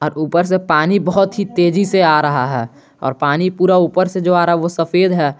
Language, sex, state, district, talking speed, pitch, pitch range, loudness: Hindi, male, Jharkhand, Garhwa, 245 wpm, 175 Hz, 150-185 Hz, -15 LUFS